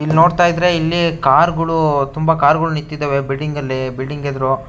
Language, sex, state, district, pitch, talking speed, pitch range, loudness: Kannada, male, Karnataka, Shimoga, 150 Hz, 165 wpm, 140-165 Hz, -16 LUFS